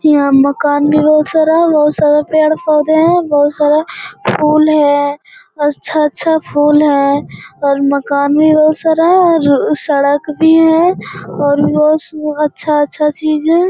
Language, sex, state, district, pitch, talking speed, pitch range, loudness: Hindi, female, Bihar, Jamui, 300 Hz, 130 wpm, 290-315 Hz, -11 LUFS